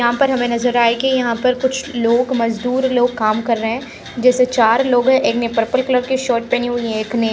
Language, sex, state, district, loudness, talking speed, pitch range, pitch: Hindi, female, Haryana, Charkhi Dadri, -16 LUFS, 255 wpm, 230-255 Hz, 245 Hz